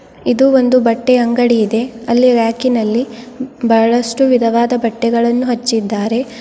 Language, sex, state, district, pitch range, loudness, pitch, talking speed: Kannada, female, Karnataka, Bidar, 230-250 Hz, -13 LUFS, 235 Hz, 110 wpm